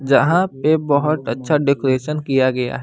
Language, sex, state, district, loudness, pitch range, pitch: Hindi, male, Bihar, West Champaran, -18 LUFS, 130-150 Hz, 140 Hz